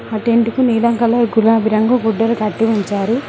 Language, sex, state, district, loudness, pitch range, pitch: Telugu, female, Telangana, Mahabubabad, -15 LUFS, 220-235 Hz, 225 Hz